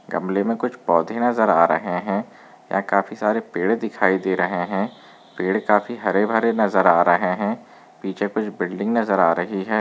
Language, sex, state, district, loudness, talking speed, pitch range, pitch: Hindi, male, Maharashtra, Chandrapur, -21 LUFS, 190 wpm, 95-110 Hz, 100 Hz